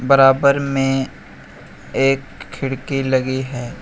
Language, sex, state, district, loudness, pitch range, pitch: Hindi, male, Uttar Pradesh, Shamli, -18 LUFS, 130-135 Hz, 135 Hz